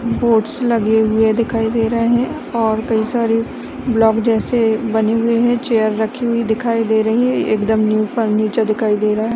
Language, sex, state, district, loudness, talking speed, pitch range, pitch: Hindi, female, Bihar, Saran, -16 LUFS, 180 wpm, 220-235 Hz, 225 Hz